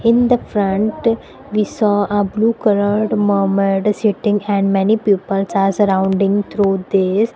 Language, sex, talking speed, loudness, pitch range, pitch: English, female, 140 wpm, -16 LUFS, 195-215 Hz, 205 Hz